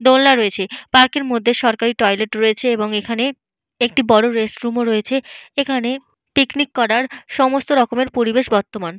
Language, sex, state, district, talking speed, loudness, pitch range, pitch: Bengali, female, Jharkhand, Jamtara, 155 wpm, -17 LUFS, 220-265 Hz, 240 Hz